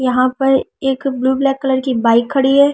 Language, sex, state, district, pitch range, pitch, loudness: Hindi, female, Delhi, New Delhi, 255-275 Hz, 265 Hz, -15 LUFS